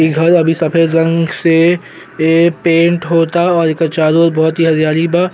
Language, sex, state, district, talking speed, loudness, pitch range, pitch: Bhojpuri, male, Uttar Pradesh, Gorakhpur, 190 wpm, -12 LUFS, 160-170 Hz, 165 Hz